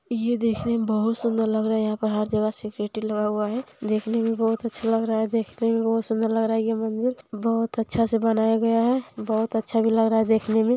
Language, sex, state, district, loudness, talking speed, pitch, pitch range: Hindi, female, Bihar, Lakhisarai, -24 LUFS, 260 wpm, 225 Hz, 220-230 Hz